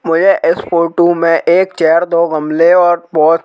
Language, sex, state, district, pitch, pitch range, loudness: Hindi, male, Madhya Pradesh, Bhopal, 170 Hz, 165-175 Hz, -11 LUFS